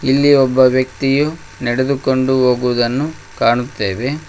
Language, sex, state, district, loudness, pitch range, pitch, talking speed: Kannada, male, Karnataka, Koppal, -15 LUFS, 125-140 Hz, 130 Hz, 85 wpm